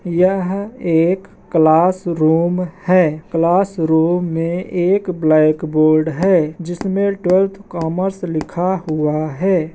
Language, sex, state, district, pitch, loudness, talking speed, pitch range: Hindi, male, Bihar, Madhepura, 175 Hz, -16 LUFS, 100 wpm, 160-185 Hz